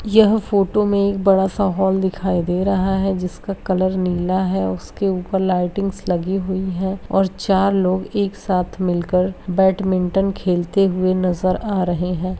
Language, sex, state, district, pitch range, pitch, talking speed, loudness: Hindi, female, Bihar, Kishanganj, 180-195 Hz, 190 Hz, 160 wpm, -19 LUFS